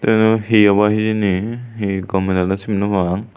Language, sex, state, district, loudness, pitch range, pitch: Chakma, male, Tripura, Unakoti, -17 LUFS, 95-110 Hz, 105 Hz